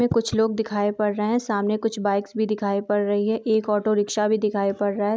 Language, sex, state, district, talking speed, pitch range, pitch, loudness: Hindi, female, Jharkhand, Jamtara, 255 wpm, 205-220 Hz, 210 Hz, -23 LUFS